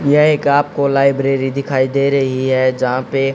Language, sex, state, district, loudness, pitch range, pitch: Hindi, male, Haryana, Jhajjar, -15 LUFS, 130-140 Hz, 135 Hz